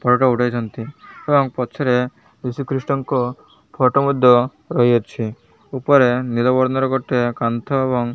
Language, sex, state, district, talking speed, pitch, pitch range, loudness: Odia, male, Odisha, Malkangiri, 125 wpm, 125 Hz, 120-135 Hz, -18 LUFS